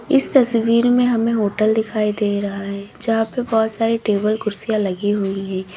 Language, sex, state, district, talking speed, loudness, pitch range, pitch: Hindi, female, Uttar Pradesh, Lalitpur, 185 wpm, -19 LUFS, 205-230 Hz, 215 Hz